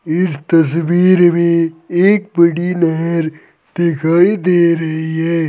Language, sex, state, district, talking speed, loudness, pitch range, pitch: Hindi, male, Uttar Pradesh, Saharanpur, 110 wpm, -14 LUFS, 165-175 Hz, 170 Hz